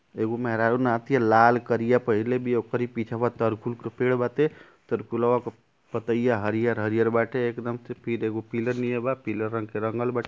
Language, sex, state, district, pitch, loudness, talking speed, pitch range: Bhojpuri, male, Uttar Pradesh, Ghazipur, 120 Hz, -25 LUFS, 175 wpm, 115-125 Hz